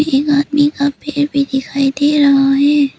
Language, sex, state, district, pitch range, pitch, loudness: Hindi, female, Arunachal Pradesh, Papum Pare, 275-290 Hz, 285 Hz, -14 LUFS